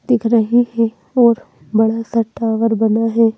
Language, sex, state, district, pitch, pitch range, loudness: Hindi, female, Madhya Pradesh, Bhopal, 225 Hz, 220-235 Hz, -16 LUFS